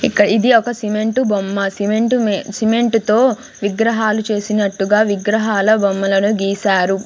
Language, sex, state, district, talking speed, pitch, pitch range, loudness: Telugu, female, Andhra Pradesh, Sri Satya Sai, 110 wpm, 210 Hz, 200-220 Hz, -16 LUFS